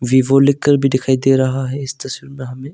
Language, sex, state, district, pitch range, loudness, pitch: Hindi, male, Arunachal Pradesh, Longding, 130-135 Hz, -15 LUFS, 135 Hz